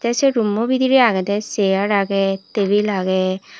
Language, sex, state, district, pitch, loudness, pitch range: Chakma, female, Tripura, Unakoti, 205 Hz, -18 LUFS, 195-230 Hz